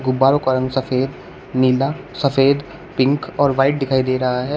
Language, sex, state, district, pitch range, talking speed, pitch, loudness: Hindi, male, Uttar Pradesh, Shamli, 130-140 Hz, 170 wpm, 135 Hz, -18 LUFS